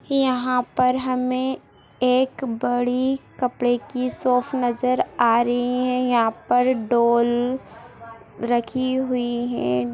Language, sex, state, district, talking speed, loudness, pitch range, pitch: Hindi, female, Bihar, Gaya, 110 wpm, -22 LUFS, 240-255 Hz, 250 Hz